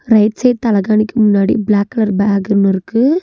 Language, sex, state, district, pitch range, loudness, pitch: Tamil, female, Tamil Nadu, Nilgiris, 200-225 Hz, -13 LUFS, 215 Hz